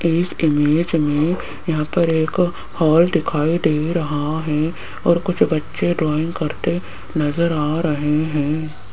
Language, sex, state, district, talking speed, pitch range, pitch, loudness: Hindi, female, Rajasthan, Jaipur, 135 wpm, 150-170 Hz, 160 Hz, -19 LUFS